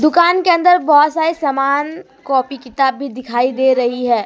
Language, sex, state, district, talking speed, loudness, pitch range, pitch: Hindi, female, Jharkhand, Deoghar, 180 wpm, -14 LUFS, 255-320 Hz, 275 Hz